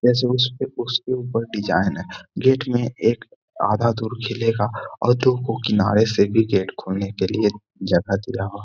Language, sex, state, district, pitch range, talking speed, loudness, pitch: Hindi, male, Bihar, Gaya, 105-125 Hz, 180 wpm, -21 LUFS, 115 Hz